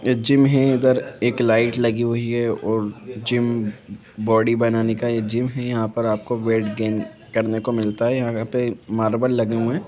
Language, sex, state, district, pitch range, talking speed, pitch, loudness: Hindi, male, Jharkhand, Jamtara, 110-120 Hz, 195 wpm, 115 Hz, -21 LUFS